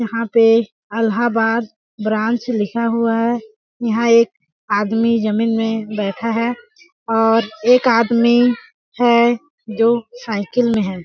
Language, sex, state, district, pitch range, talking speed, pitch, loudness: Hindi, female, Chhattisgarh, Balrampur, 220-235 Hz, 120 wpm, 230 Hz, -17 LUFS